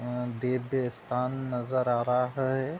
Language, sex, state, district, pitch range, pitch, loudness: Hindi, male, Uttar Pradesh, Budaun, 125-130 Hz, 125 Hz, -30 LUFS